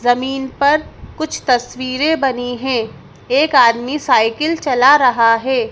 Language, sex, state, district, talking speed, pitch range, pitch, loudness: Hindi, female, Madhya Pradesh, Bhopal, 125 wpm, 240-285 Hz, 255 Hz, -15 LUFS